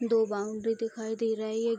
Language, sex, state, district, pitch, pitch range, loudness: Hindi, female, Bihar, Araria, 225 Hz, 220-225 Hz, -31 LUFS